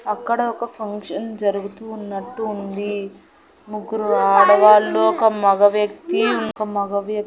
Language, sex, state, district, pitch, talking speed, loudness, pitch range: Telugu, female, Andhra Pradesh, Annamaya, 210 Hz, 125 wpm, -19 LUFS, 200-220 Hz